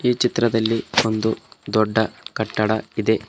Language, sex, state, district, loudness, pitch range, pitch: Kannada, male, Karnataka, Bidar, -21 LUFS, 110-115 Hz, 110 Hz